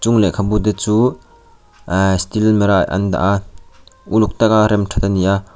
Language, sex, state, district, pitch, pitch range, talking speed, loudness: Mizo, male, Mizoram, Aizawl, 100 Hz, 95-105 Hz, 185 wpm, -16 LUFS